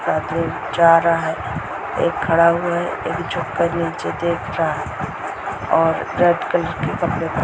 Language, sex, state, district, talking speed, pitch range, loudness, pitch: Hindi, female, Bihar, Muzaffarpur, 170 wpm, 165-170 Hz, -19 LUFS, 165 Hz